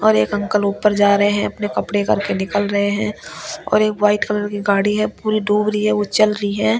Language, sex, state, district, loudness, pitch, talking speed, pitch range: Hindi, female, Delhi, New Delhi, -18 LUFS, 205 Hz, 240 wpm, 205-210 Hz